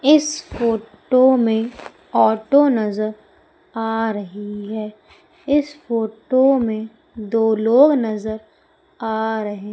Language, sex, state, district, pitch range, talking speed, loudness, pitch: Hindi, female, Madhya Pradesh, Umaria, 215-280 Hz, 90 wpm, -19 LUFS, 225 Hz